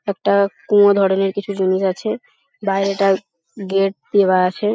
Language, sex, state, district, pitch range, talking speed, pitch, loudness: Bengali, female, West Bengal, Paschim Medinipur, 190-205 Hz, 140 wpm, 195 Hz, -17 LUFS